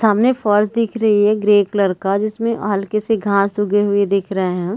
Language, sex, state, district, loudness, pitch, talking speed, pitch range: Hindi, female, Chhattisgarh, Bilaspur, -17 LUFS, 205 Hz, 215 wpm, 200-215 Hz